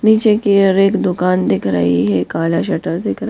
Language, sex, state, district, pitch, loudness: Hindi, female, Madhya Pradesh, Bhopal, 185 Hz, -15 LUFS